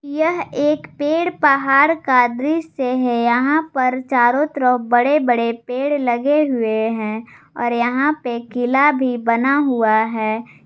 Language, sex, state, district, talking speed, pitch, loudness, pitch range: Hindi, female, Jharkhand, Garhwa, 140 wpm, 255 Hz, -17 LUFS, 240-290 Hz